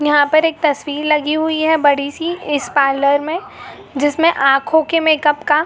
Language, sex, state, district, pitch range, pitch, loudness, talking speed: Hindi, female, Jharkhand, Jamtara, 290-320 Hz, 300 Hz, -15 LUFS, 190 wpm